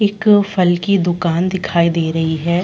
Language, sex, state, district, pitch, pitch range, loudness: Hindi, female, Chhattisgarh, Rajnandgaon, 175 Hz, 170-195 Hz, -15 LUFS